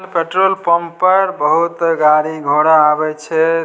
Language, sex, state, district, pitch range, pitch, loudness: Maithili, male, Bihar, Samastipur, 155-175 Hz, 165 Hz, -14 LUFS